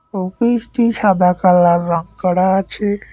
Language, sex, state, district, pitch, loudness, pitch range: Bengali, male, West Bengal, Cooch Behar, 190 Hz, -15 LUFS, 180-215 Hz